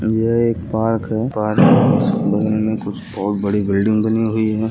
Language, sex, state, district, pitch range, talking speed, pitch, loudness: Hindi, male, Uttar Pradesh, Gorakhpur, 105-110 Hz, 205 wpm, 110 Hz, -17 LUFS